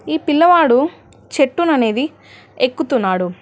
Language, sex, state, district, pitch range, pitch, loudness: Telugu, female, Telangana, Hyderabad, 245-320 Hz, 275 Hz, -15 LUFS